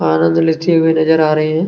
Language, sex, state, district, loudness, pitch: Hindi, male, Chhattisgarh, Kabirdham, -13 LUFS, 160 Hz